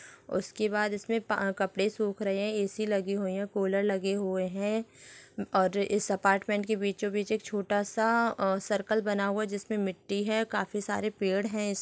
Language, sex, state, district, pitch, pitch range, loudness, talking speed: Hindi, female, Chhattisgarh, Sukma, 205 Hz, 195-215 Hz, -30 LUFS, 195 wpm